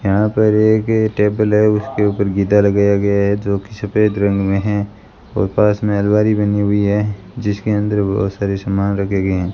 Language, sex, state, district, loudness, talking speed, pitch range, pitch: Hindi, female, Rajasthan, Bikaner, -16 LUFS, 215 wpm, 100-105 Hz, 105 Hz